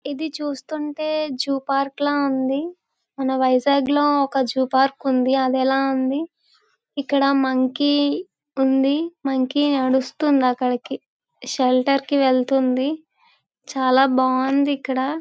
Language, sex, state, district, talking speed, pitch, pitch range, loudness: Telugu, female, Andhra Pradesh, Visakhapatnam, 105 wpm, 275 Hz, 260-290 Hz, -20 LUFS